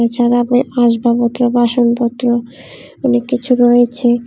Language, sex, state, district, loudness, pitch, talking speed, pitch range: Bengali, female, Tripura, West Tripura, -13 LUFS, 240 Hz, 100 wpm, 240-245 Hz